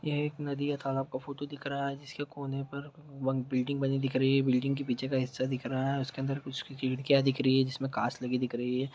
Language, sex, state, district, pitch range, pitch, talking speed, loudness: Hindi, male, Jharkhand, Sahebganj, 130-140 Hz, 135 Hz, 280 wpm, -32 LUFS